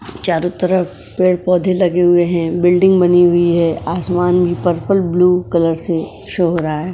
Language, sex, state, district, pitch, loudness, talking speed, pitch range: Hindi, female, Uttar Pradesh, Jyotiba Phule Nagar, 175 Hz, -14 LUFS, 175 wpm, 170-180 Hz